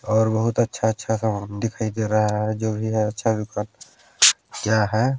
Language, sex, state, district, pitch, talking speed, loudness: Hindi, male, Chhattisgarh, Balrampur, 110 Hz, 160 wpm, -22 LUFS